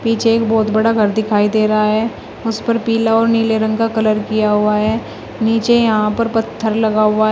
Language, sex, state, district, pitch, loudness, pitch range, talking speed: Hindi, female, Uttar Pradesh, Shamli, 220 Hz, -15 LUFS, 215-225 Hz, 220 wpm